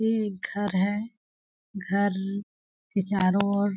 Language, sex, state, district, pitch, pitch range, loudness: Hindi, female, Chhattisgarh, Balrampur, 200 Hz, 195-205 Hz, -27 LUFS